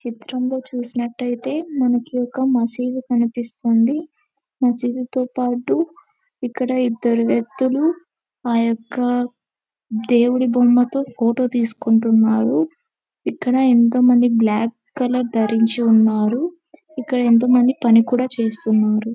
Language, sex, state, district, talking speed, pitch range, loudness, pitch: Telugu, female, Andhra Pradesh, Chittoor, 95 wpm, 235-260 Hz, -18 LUFS, 245 Hz